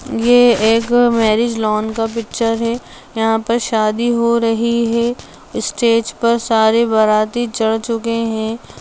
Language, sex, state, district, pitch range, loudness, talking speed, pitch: Hindi, female, Bihar, Jamui, 220-235 Hz, -15 LUFS, 135 wpm, 230 Hz